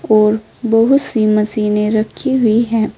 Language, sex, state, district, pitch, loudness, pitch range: Hindi, female, Uttar Pradesh, Saharanpur, 220 Hz, -14 LUFS, 215-230 Hz